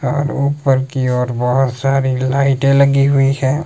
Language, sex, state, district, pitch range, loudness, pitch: Hindi, male, Himachal Pradesh, Shimla, 130-140 Hz, -15 LUFS, 135 Hz